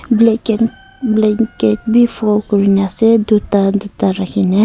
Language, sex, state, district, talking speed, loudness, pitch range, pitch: Nagamese, female, Nagaland, Kohima, 105 wpm, -14 LUFS, 200-225 Hz, 210 Hz